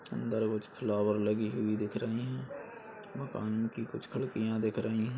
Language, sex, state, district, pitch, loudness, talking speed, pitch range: Hindi, male, Uttar Pradesh, Ghazipur, 110 Hz, -34 LUFS, 185 wpm, 105-115 Hz